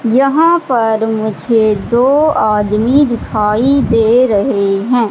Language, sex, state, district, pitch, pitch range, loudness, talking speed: Hindi, female, Madhya Pradesh, Katni, 230 Hz, 215-265 Hz, -12 LUFS, 105 wpm